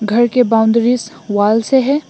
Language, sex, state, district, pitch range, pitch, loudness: Hindi, female, Assam, Hailakandi, 220-250 Hz, 230 Hz, -14 LUFS